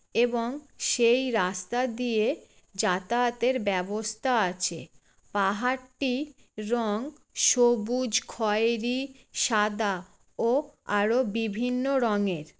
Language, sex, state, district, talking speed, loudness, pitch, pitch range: Bengali, female, West Bengal, Jalpaiguri, 75 wpm, -27 LUFS, 235 Hz, 210-250 Hz